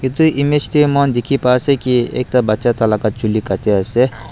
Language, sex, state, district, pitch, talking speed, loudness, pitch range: Nagamese, male, Nagaland, Dimapur, 125 Hz, 220 wpm, -15 LUFS, 110-140 Hz